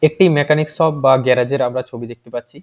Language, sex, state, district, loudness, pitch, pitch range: Bengali, male, West Bengal, Jhargram, -15 LUFS, 135 Hz, 125-155 Hz